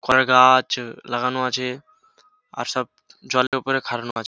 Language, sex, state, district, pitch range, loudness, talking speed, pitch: Bengali, male, West Bengal, Jhargram, 125-135 Hz, -20 LUFS, 140 wpm, 130 Hz